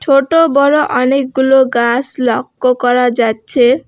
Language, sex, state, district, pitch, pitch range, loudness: Bengali, female, West Bengal, Alipurduar, 260 Hz, 245-275 Hz, -12 LUFS